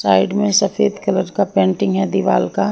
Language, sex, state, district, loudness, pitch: Hindi, female, Haryana, Jhajjar, -17 LUFS, 100 Hz